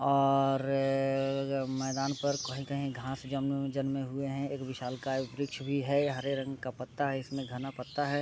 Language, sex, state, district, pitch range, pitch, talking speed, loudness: Hindi, male, Bihar, Sitamarhi, 135-140 Hz, 135 Hz, 175 wpm, -33 LUFS